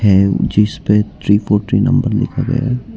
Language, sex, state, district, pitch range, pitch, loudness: Hindi, male, Arunachal Pradesh, Lower Dibang Valley, 105-125 Hz, 110 Hz, -15 LUFS